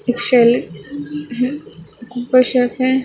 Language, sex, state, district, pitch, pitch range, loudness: Hindi, female, Maharashtra, Gondia, 255 Hz, 245-265 Hz, -15 LUFS